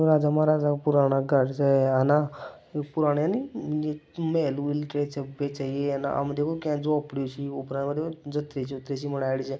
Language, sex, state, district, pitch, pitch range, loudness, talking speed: Marwari, male, Rajasthan, Nagaur, 145 Hz, 140-150 Hz, -27 LUFS, 160 wpm